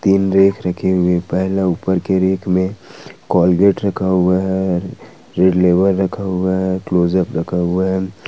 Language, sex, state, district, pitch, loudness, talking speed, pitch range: Hindi, male, Jharkhand, Ranchi, 95 Hz, -16 LUFS, 160 wpm, 90-95 Hz